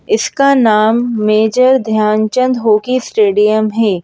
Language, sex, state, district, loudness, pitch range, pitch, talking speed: Hindi, female, Madhya Pradesh, Bhopal, -12 LUFS, 215-250 Hz, 220 Hz, 105 wpm